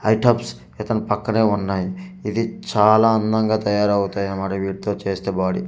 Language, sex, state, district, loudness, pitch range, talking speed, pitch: Telugu, male, Andhra Pradesh, Manyam, -20 LUFS, 95-110 Hz, 125 wpm, 105 Hz